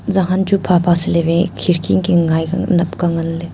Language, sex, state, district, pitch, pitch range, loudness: Wancho, female, Arunachal Pradesh, Longding, 175 Hz, 170-185 Hz, -15 LUFS